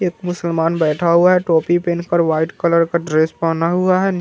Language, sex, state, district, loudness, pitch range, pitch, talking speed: Hindi, male, Bihar, Vaishali, -16 LUFS, 165-175 Hz, 170 Hz, 240 wpm